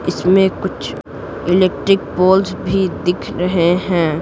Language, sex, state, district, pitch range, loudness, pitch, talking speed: Hindi, female, Bihar, Patna, 175-190 Hz, -16 LUFS, 180 Hz, 115 wpm